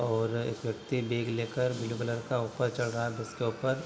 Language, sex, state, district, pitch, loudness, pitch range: Hindi, male, Bihar, Sitamarhi, 120 Hz, -32 LUFS, 115-125 Hz